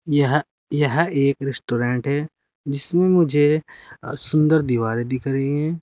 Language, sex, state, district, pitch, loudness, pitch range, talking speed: Hindi, male, Uttar Pradesh, Saharanpur, 145 Hz, -19 LUFS, 135-155 Hz, 125 wpm